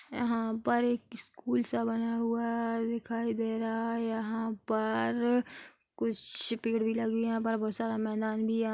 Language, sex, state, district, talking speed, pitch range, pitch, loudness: Hindi, female, Chhattisgarh, Bilaspur, 180 wpm, 220-230 Hz, 225 Hz, -32 LUFS